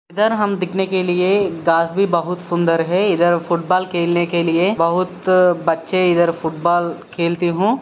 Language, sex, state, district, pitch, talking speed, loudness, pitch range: Hindi, male, Maharashtra, Sindhudurg, 175 Hz, 170 wpm, -17 LUFS, 170-185 Hz